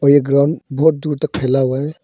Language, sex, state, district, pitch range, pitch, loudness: Hindi, male, Arunachal Pradesh, Longding, 135-155 Hz, 145 Hz, -16 LUFS